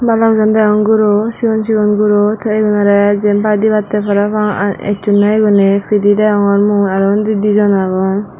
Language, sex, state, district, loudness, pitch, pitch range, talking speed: Chakma, female, Tripura, Dhalai, -12 LUFS, 210 Hz, 205-215 Hz, 150 wpm